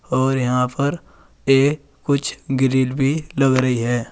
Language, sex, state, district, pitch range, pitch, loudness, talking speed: Hindi, male, Uttar Pradesh, Saharanpur, 130-140 Hz, 135 Hz, -19 LUFS, 145 wpm